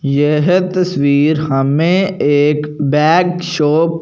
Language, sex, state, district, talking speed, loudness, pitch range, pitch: Hindi, male, Punjab, Fazilka, 105 wpm, -13 LUFS, 145-175 Hz, 150 Hz